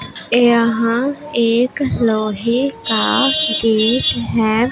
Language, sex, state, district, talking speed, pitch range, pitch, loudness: Hindi, female, Punjab, Pathankot, 75 wpm, 220-250 Hz, 230 Hz, -15 LUFS